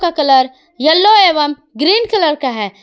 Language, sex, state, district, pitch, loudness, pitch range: Hindi, female, Jharkhand, Garhwa, 300 Hz, -12 LUFS, 265-360 Hz